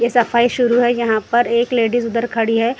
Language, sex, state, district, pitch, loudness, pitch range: Hindi, female, Maharashtra, Gondia, 235 Hz, -16 LUFS, 230-240 Hz